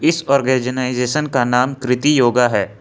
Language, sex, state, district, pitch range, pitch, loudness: Hindi, male, Jharkhand, Ranchi, 125-140 Hz, 130 Hz, -16 LUFS